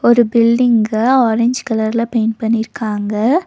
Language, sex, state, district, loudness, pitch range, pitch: Tamil, female, Tamil Nadu, Nilgiris, -15 LUFS, 220-240 Hz, 230 Hz